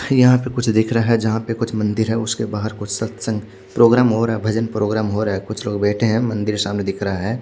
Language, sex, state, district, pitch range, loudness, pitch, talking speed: Hindi, male, Odisha, Khordha, 105-115 Hz, -19 LUFS, 110 Hz, 235 wpm